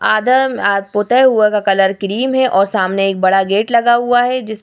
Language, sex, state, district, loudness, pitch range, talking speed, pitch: Hindi, female, Bihar, Vaishali, -13 LUFS, 195-245 Hz, 220 wpm, 210 Hz